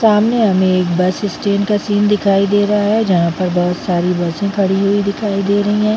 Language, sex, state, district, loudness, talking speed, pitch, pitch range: Hindi, female, Chhattisgarh, Bilaspur, -15 LUFS, 220 wpm, 200 Hz, 185-210 Hz